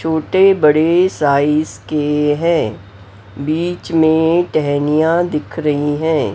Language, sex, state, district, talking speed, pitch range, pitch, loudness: Hindi, female, Maharashtra, Mumbai Suburban, 105 wpm, 145-165 Hz, 155 Hz, -15 LUFS